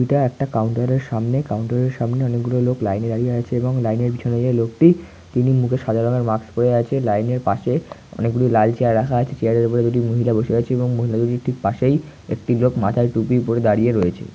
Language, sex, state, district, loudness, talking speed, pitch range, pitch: Bengali, male, West Bengal, North 24 Parganas, -19 LUFS, 205 wpm, 115-125 Hz, 120 Hz